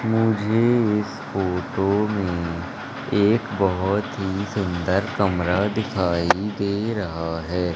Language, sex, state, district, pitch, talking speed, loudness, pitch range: Hindi, male, Madhya Pradesh, Umaria, 100 Hz, 100 wpm, -23 LUFS, 90-105 Hz